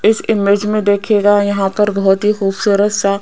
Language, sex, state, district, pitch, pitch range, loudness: Hindi, female, Rajasthan, Jaipur, 205 Hz, 200-210 Hz, -14 LUFS